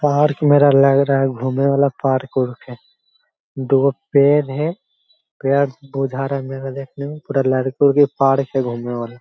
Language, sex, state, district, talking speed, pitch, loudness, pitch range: Hindi, male, Bihar, Jahanabad, 175 wpm, 135 Hz, -17 LUFS, 135-145 Hz